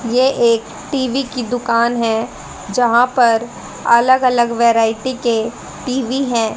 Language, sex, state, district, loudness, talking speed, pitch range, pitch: Hindi, female, Haryana, Rohtak, -16 LUFS, 130 wpm, 230-255 Hz, 240 Hz